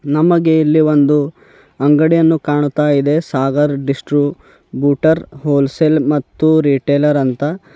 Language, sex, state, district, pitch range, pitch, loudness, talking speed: Kannada, male, Karnataka, Bidar, 140-155 Hz, 145 Hz, -14 LUFS, 95 wpm